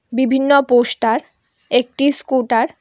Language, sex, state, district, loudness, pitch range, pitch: Bengali, female, Tripura, West Tripura, -16 LUFS, 240-275 Hz, 250 Hz